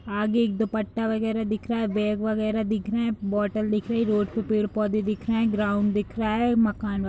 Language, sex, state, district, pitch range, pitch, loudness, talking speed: Hindi, female, Uttar Pradesh, Jalaun, 210-225 Hz, 215 Hz, -25 LUFS, 245 wpm